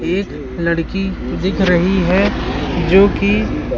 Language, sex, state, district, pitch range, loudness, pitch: Hindi, male, Madhya Pradesh, Katni, 170-195 Hz, -16 LUFS, 190 Hz